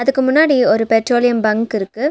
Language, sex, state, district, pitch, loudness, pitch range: Tamil, female, Tamil Nadu, Nilgiris, 240 Hz, -15 LUFS, 225-265 Hz